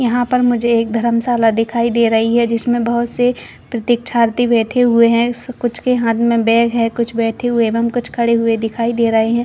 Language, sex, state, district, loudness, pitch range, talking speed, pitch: Hindi, female, Chhattisgarh, Bastar, -15 LUFS, 230-240 Hz, 215 wpm, 235 Hz